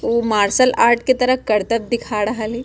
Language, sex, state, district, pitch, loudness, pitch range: Bajjika, female, Bihar, Vaishali, 230 Hz, -17 LUFS, 215-245 Hz